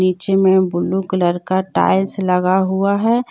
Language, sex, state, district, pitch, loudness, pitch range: Hindi, female, Jharkhand, Deoghar, 190 Hz, -16 LUFS, 185-195 Hz